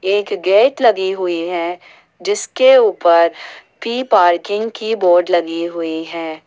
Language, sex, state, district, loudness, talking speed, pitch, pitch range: Hindi, female, Jharkhand, Ranchi, -15 LUFS, 130 wpm, 180 Hz, 170-225 Hz